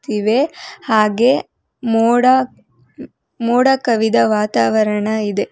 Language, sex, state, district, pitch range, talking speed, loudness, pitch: Kannada, female, Karnataka, Bangalore, 215-255 Hz, 75 wpm, -15 LUFS, 230 Hz